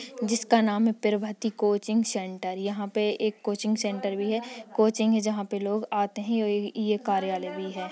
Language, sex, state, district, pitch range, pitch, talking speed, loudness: Hindi, female, Uttar Pradesh, Ghazipur, 205-220 Hz, 210 Hz, 190 wpm, -27 LUFS